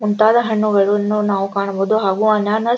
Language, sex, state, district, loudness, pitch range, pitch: Kannada, female, Karnataka, Dharwad, -16 LUFS, 200-215 Hz, 210 Hz